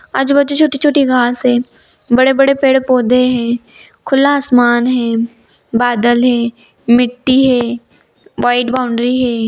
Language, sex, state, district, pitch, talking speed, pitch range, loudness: Hindi, female, Bihar, Gaya, 245 Hz, 105 wpm, 240-265 Hz, -13 LUFS